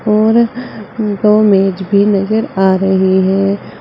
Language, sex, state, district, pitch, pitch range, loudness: Hindi, female, Uttar Pradesh, Saharanpur, 200 Hz, 190-215 Hz, -12 LUFS